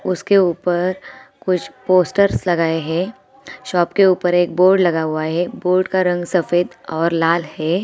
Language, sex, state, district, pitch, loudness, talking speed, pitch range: Hindi, female, Bihar, Gopalganj, 180 Hz, -17 LUFS, 160 wpm, 170-185 Hz